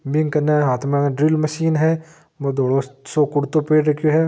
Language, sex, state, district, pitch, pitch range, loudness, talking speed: Marwari, male, Rajasthan, Nagaur, 150 Hz, 140-155 Hz, -19 LUFS, 195 wpm